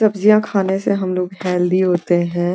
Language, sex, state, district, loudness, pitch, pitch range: Hindi, female, Uttarakhand, Uttarkashi, -17 LUFS, 185 Hz, 180-200 Hz